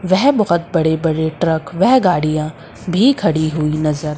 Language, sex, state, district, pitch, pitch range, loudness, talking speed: Hindi, female, Madhya Pradesh, Umaria, 160 Hz, 155-185 Hz, -16 LUFS, 160 wpm